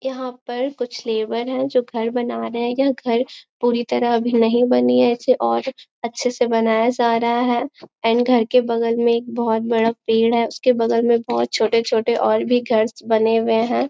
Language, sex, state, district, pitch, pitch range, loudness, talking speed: Hindi, female, Bihar, Jamui, 235 Hz, 225-245 Hz, -19 LUFS, 205 wpm